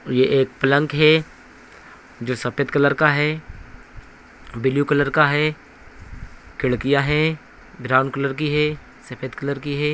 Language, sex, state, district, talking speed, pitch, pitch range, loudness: Hindi, male, Bihar, Araria, 55 wpm, 140 Hz, 130-150 Hz, -19 LUFS